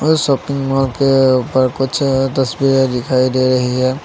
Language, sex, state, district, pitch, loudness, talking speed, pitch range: Hindi, male, Assam, Sonitpur, 135 Hz, -15 LUFS, 165 wpm, 130-135 Hz